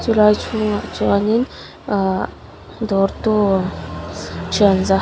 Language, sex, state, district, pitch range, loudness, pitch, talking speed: Mizo, female, Mizoram, Aizawl, 195-215 Hz, -19 LUFS, 205 Hz, 85 wpm